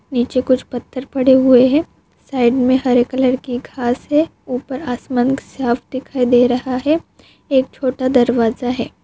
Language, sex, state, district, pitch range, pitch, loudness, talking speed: Hindi, female, Maharashtra, Pune, 245-265 Hz, 255 Hz, -17 LUFS, 160 wpm